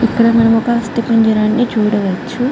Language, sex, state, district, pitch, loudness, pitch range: Telugu, female, Andhra Pradesh, Guntur, 230 Hz, -13 LUFS, 215-235 Hz